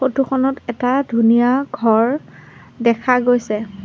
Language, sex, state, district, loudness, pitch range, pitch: Assamese, female, Assam, Sonitpur, -17 LUFS, 230-265 Hz, 245 Hz